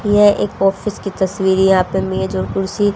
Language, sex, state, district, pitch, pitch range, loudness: Hindi, female, Haryana, Jhajjar, 190 Hz, 180-205 Hz, -16 LUFS